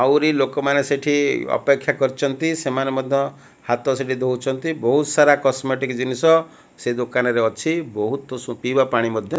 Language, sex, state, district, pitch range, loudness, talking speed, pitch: Odia, male, Odisha, Malkangiri, 125-145 Hz, -20 LUFS, 140 wpm, 135 Hz